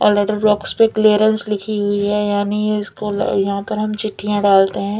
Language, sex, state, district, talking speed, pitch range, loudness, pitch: Hindi, female, Punjab, Fazilka, 205 wpm, 205-215 Hz, -17 LUFS, 210 Hz